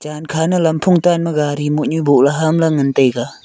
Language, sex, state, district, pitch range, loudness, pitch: Wancho, male, Arunachal Pradesh, Longding, 145-160 Hz, -15 LUFS, 155 Hz